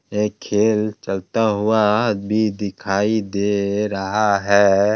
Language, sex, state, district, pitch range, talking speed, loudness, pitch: Hindi, male, Bihar, Kishanganj, 100-105 Hz, 110 wpm, -19 LUFS, 105 Hz